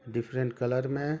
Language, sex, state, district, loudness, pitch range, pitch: Hindi, male, Jharkhand, Sahebganj, -31 LUFS, 120-135 Hz, 130 Hz